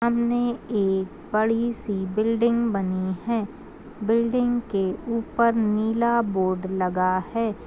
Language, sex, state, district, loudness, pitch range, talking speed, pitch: Hindi, female, Uttar Pradesh, Gorakhpur, -24 LUFS, 190-235 Hz, 110 wpm, 225 Hz